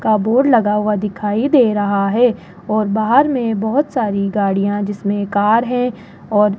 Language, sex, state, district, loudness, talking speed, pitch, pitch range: Hindi, female, Rajasthan, Jaipur, -16 LUFS, 175 wpm, 210 Hz, 205-240 Hz